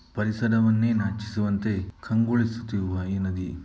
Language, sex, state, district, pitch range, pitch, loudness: Kannada, male, Karnataka, Mysore, 95-115 Hz, 105 Hz, -26 LUFS